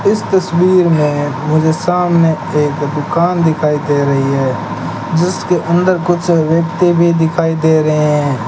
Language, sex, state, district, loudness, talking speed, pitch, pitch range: Hindi, male, Rajasthan, Bikaner, -13 LUFS, 140 wpm, 160 Hz, 150-175 Hz